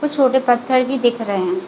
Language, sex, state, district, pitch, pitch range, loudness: Hindi, female, Chhattisgarh, Bilaspur, 245 Hz, 210-265 Hz, -17 LUFS